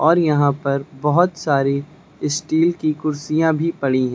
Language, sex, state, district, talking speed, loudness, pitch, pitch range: Hindi, male, Uttar Pradesh, Lucknow, 160 wpm, -19 LUFS, 150 Hz, 140-160 Hz